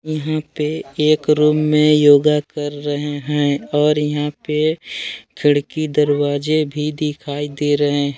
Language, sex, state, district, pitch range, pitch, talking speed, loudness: Hindi, male, Jharkhand, Palamu, 145-150 Hz, 150 Hz, 140 wpm, -17 LUFS